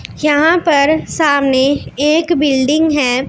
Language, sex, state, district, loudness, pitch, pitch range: Hindi, female, Punjab, Pathankot, -13 LUFS, 295 Hz, 280-315 Hz